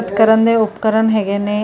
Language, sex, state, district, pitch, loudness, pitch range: Punjabi, female, Karnataka, Bangalore, 220 Hz, -14 LUFS, 210-220 Hz